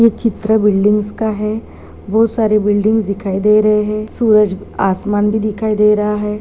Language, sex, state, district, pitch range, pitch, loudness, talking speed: Hindi, female, Chhattisgarh, Bastar, 210-220 Hz, 210 Hz, -14 LUFS, 180 wpm